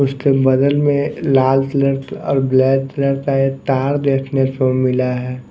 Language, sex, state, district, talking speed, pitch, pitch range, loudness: Hindi, male, Odisha, Nuapada, 165 wpm, 135 Hz, 130-140 Hz, -16 LUFS